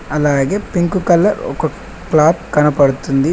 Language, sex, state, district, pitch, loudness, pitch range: Telugu, male, Telangana, Mahabubabad, 155 Hz, -15 LUFS, 145-175 Hz